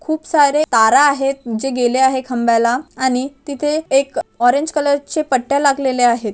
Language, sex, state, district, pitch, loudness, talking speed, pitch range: Marathi, male, Maharashtra, Chandrapur, 270 Hz, -16 LUFS, 160 wpm, 245-290 Hz